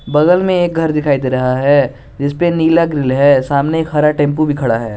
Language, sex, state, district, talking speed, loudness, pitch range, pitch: Hindi, male, Jharkhand, Garhwa, 230 wpm, -13 LUFS, 135-160 Hz, 145 Hz